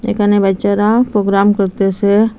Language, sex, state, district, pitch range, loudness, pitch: Bengali, female, Assam, Hailakandi, 200-215 Hz, -13 LUFS, 205 Hz